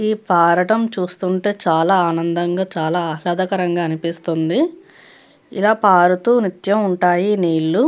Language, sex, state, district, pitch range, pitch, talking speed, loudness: Telugu, female, Andhra Pradesh, Chittoor, 170-205 Hz, 180 Hz, 100 wpm, -17 LUFS